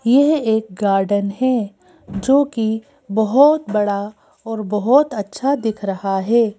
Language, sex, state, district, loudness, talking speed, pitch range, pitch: Hindi, female, Madhya Pradesh, Bhopal, -18 LUFS, 120 wpm, 205-260 Hz, 220 Hz